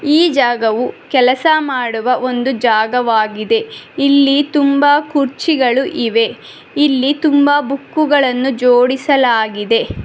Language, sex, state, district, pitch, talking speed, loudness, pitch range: Kannada, female, Karnataka, Bangalore, 265 Hz, 85 wpm, -14 LUFS, 245-290 Hz